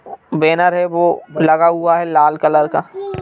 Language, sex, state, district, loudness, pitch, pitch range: Hindi, male, Madhya Pradesh, Bhopal, -14 LUFS, 170 Hz, 155-175 Hz